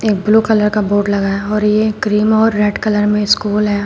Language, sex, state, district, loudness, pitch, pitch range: Hindi, female, Uttar Pradesh, Shamli, -14 LUFS, 210 Hz, 205-215 Hz